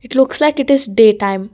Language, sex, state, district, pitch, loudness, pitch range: English, female, Karnataka, Bangalore, 250 Hz, -13 LUFS, 205-275 Hz